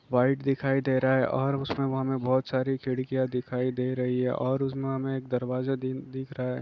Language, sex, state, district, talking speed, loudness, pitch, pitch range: Hindi, male, Chhattisgarh, Raigarh, 215 wpm, -28 LUFS, 130 Hz, 125-135 Hz